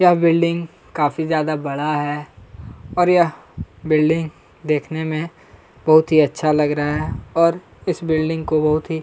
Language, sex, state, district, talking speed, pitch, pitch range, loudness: Hindi, male, Chhattisgarh, Kabirdham, 160 wpm, 155 Hz, 150-165 Hz, -19 LUFS